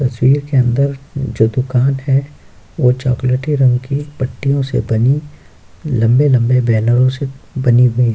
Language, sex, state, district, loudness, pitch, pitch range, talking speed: Hindi, male, Bihar, Kishanganj, -15 LUFS, 130 Hz, 125-140 Hz, 140 wpm